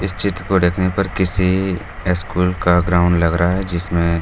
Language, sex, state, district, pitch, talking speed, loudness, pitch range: Hindi, male, Bihar, Gaya, 90 Hz, 130 wpm, -17 LUFS, 85-95 Hz